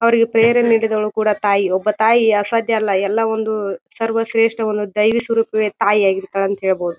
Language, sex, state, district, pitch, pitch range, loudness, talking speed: Kannada, female, Karnataka, Bijapur, 215 Hz, 200-225 Hz, -17 LUFS, 170 wpm